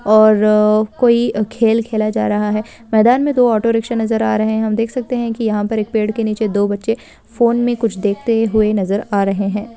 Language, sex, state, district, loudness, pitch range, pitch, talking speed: Hindi, female, Uttarakhand, Uttarkashi, -16 LUFS, 210-230 Hz, 220 Hz, 220 wpm